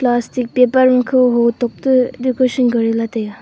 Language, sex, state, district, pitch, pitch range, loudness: Wancho, female, Arunachal Pradesh, Longding, 250 Hz, 235-255 Hz, -15 LUFS